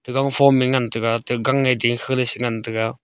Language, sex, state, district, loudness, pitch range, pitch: Wancho, male, Arunachal Pradesh, Longding, -20 LUFS, 115-130 Hz, 125 Hz